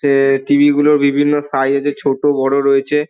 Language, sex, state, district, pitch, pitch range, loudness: Bengali, male, West Bengal, Dakshin Dinajpur, 140 Hz, 135-145 Hz, -14 LUFS